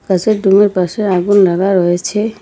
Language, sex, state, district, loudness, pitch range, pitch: Bengali, female, West Bengal, Cooch Behar, -12 LUFS, 185-205 Hz, 195 Hz